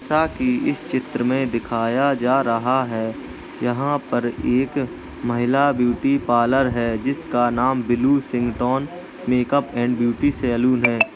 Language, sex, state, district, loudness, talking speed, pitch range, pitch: Hindi, male, Uttar Pradesh, Jalaun, -21 LUFS, 130 wpm, 120-140 Hz, 125 Hz